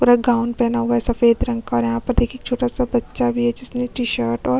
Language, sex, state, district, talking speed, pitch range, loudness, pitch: Hindi, female, Chhattisgarh, Kabirdham, 300 wpm, 235-245 Hz, -20 LUFS, 240 Hz